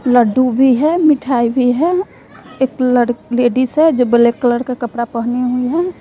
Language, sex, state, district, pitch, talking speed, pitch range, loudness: Hindi, female, Bihar, West Champaran, 250 Hz, 170 wpm, 240-270 Hz, -14 LUFS